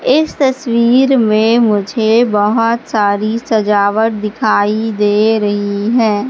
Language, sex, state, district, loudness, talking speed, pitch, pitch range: Hindi, female, Madhya Pradesh, Katni, -13 LUFS, 105 wpm, 220 Hz, 210-235 Hz